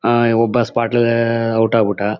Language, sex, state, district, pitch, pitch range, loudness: Kannada, male, Karnataka, Mysore, 115 Hz, 115-120 Hz, -16 LUFS